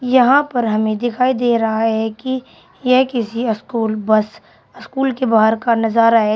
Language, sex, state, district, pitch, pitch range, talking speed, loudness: Hindi, female, Uttar Pradesh, Shamli, 230 Hz, 220-255 Hz, 170 wpm, -16 LUFS